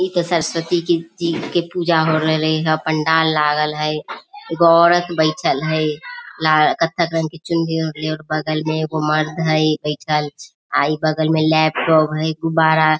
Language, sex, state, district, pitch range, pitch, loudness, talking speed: Maithili, female, Bihar, Samastipur, 155-165 Hz, 155 Hz, -17 LUFS, 160 wpm